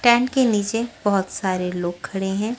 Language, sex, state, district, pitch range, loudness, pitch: Hindi, female, Maharashtra, Washim, 185-235 Hz, -22 LUFS, 200 Hz